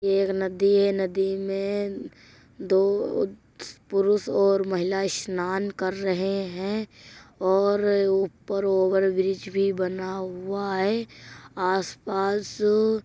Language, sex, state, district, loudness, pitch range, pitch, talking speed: Hindi, female, Uttar Pradesh, Jyotiba Phule Nagar, -25 LUFS, 190-200 Hz, 195 Hz, 110 wpm